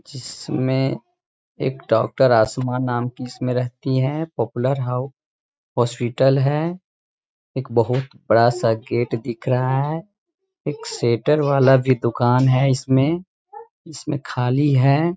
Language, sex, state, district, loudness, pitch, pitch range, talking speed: Hindi, male, Jharkhand, Sahebganj, -20 LUFS, 130 Hz, 125-150 Hz, 125 wpm